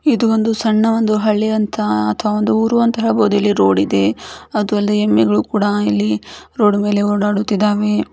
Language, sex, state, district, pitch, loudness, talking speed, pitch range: Kannada, female, Karnataka, Chamarajanagar, 210 Hz, -16 LUFS, 160 wpm, 205-220 Hz